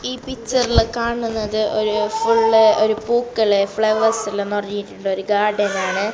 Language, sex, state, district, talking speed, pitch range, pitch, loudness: Malayalam, female, Kerala, Kasaragod, 115 wpm, 205-230 Hz, 215 Hz, -18 LUFS